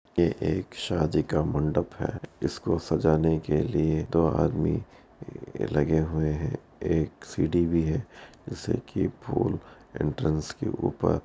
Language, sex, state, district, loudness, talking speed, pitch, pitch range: Hindi, male, Uttar Pradesh, Muzaffarnagar, -27 LUFS, 140 wpm, 80 Hz, 75-85 Hz